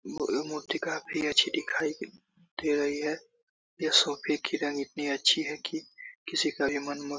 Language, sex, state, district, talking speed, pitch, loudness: Hindi, male, Bihar, Saran, 175 wpm, 150 Hz, -29 LUFS